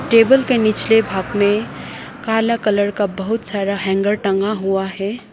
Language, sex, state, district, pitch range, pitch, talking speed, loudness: Hindi, female, Sikkim, Gangtok, 195-225 Hz, 205 Hz, 155 wpm, -17 LUFS